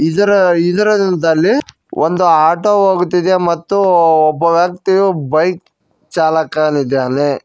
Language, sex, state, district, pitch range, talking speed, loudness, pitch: Kannada, male, Karnataka, Koppal, 155-185 Hz, 80 wpm, -13 LUFS, 170 Hz